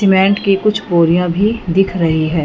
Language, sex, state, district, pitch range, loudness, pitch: Hindi, female, Punjab, Fazilka, 170-200 Hz, -14 LUFS, 190 Hz